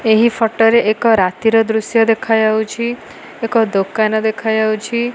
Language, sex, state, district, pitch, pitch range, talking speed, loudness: Odia, female, Odisha, Malkangiri, 225 Hz, 220-230 Hz, 115 wpm, -15 LUFS